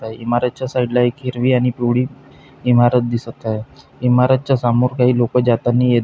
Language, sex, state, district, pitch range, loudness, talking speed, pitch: Marathi, male, Maharashtra, Pune, 120-130 Hz, -17 LUFS, 160 wpm, 125 Hz